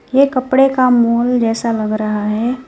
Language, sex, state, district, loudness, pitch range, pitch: Hindi, female, West Bengal, Alipurduar, -14 LUFS, 225-255 Hz, 240 Hz